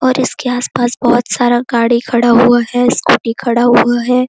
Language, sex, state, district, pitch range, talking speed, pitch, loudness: Hindi, female, Chhattisgarh, Korba, 240-250 Hz, 180 wpm, 240 Hz, -12 LUFS